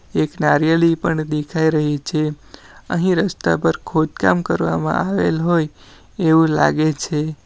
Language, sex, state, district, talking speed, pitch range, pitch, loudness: Gujarati, male, Gujarat, Valsad, 130 wpm, 140-165 Hz, 155 Hz, -18 LUFS